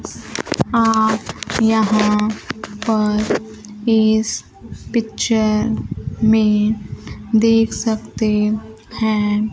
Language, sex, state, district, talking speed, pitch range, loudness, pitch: Hindi, female, Bihar, Kaimur, 55 wpm, 210-220 Hz, -18 LUFS, 220 Hz